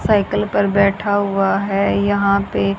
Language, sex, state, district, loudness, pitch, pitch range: Hindi, female, Haryana, Charkhi Dadri, -17 LUFS, 200 Hz, 195-205 Hz